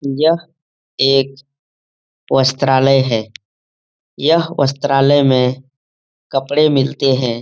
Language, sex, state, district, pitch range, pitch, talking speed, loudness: Hindi, male, Bihar, Jamui, 115-140 Hz, 135 Hz, 80 wpm, -15 LUFS